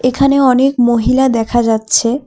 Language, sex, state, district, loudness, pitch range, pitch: Bengali, female, West Bengal, Alipurduar, -12 LUFS, 235-265 Hz, 250 Hz